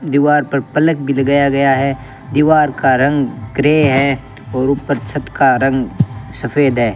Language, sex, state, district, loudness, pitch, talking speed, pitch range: Hindi, male, Rajasthan, Bikaner, -14 LUFS, 140 Hz, 165 wpm, 130-145 Hz